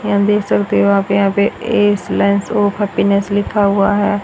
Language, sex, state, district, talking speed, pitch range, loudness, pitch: Hindi, female, Haryana, Rohtak, 155 wpm, 200-205 Hz, -14 LUFS, 200 Hz